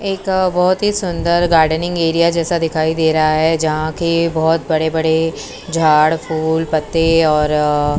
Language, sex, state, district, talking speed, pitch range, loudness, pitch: Hindi, female, Maharashtra, Mumbai Suburban, 165 wpm, 155-170 Hz, -15 LUFS, 160 Hz